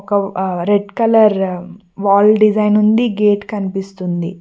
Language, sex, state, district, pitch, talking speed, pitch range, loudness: Telugu, female, Telangana, Mahabubabad, 200 Hz, 95 wpm, 190-210 Hz, -15 LUFS